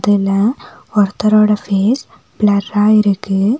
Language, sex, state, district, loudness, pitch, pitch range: Tamil, female, Tamil Nadu, Nilgiris, -14 LUFS, 210 Hz, 200-215 Hz